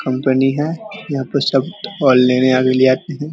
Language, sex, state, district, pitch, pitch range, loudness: Hindi, male, Bihar, Vaishali, 135 Hz, 130-155 Hz, -15 LUFS